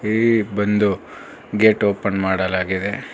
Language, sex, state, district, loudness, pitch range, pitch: Kannada, male, Karnataka, Bangalore, -19 LUFS, 95-105 Hz, 100 Hz